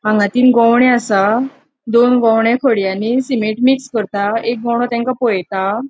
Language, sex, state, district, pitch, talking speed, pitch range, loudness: Konkani, female, Goa, North and South Goa, 235 Hz, 130 wpm, 215-250 Hz, -14 LUFS